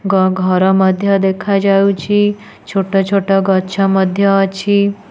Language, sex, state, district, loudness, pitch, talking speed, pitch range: Odia, female, Odisha, Nuapada, -13 LUFS, 195 Hz, 95 wpm, 190-200 Hz